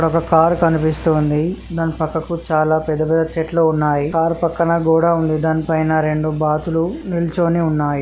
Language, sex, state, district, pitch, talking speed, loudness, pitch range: Telugu, male, Andhra Pradesh, Srikakulam, 160 Hz, 155 wpm, -17 LUFS, 155-165 Hz